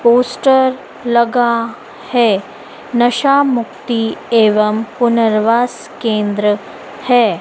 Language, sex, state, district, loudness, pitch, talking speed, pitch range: Hindi, female, Madhya Pradesh, Dhar, -14 LUFS, 235 Hz, 75 wpm, 220-245 Hz